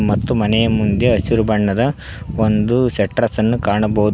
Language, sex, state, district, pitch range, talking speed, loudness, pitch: Kannada, male, Karnataka, Koppal, 105-120 Hz, 115 wpm, -16 LUFS, 110 Hz